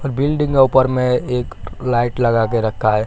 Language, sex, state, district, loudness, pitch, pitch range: Hindi, male, Bihar, Katihar, -17 LUFS, 125 Hz, 115-135 Hz